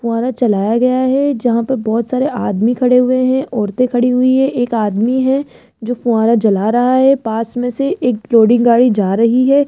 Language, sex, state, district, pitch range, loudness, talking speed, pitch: Hindi, female, Rajasthan, Jaipur, 230-255 Hz, -14 LUFS, 205 wpm, 245 Hz